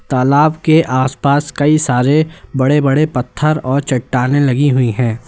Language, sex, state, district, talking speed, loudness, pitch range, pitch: Hindi, male, Uttar Pradesh, Lalitpur, 145 wpm, -14 LUFS, 130-150 Hz, 140 Hz